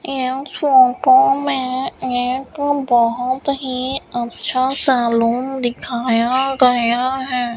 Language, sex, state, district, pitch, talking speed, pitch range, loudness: Hindi, female, Rajasthan, Bikaner, 255 Hz, 95 wpm, 245-270 Hz, -17 LUFS